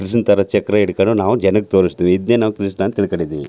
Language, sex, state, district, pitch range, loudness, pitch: Kannada, male, Karnataka, Chamarajanagar, 95-105 Hz, -16 LUFS, 100 Hz